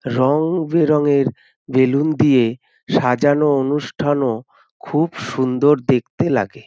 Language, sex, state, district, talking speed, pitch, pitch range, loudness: Bengali, male, West Bengal, North 24 Parganas, 90 wpm, 140 Hz, 130-150 Hz, -17 LUFS